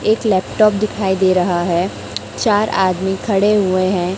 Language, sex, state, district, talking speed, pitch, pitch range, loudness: Hindi, female, Chhattisgarh, Raipur, 155 wpm, 190 Hz, 185-210 Hz, -16 LUFS